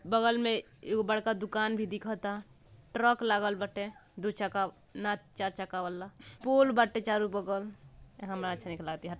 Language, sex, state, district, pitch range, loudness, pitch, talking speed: Bhojpuri, female, Bihar, Gopalganj, 190-220 Hz, -32 LUFS, 205 Hz, 155 wpm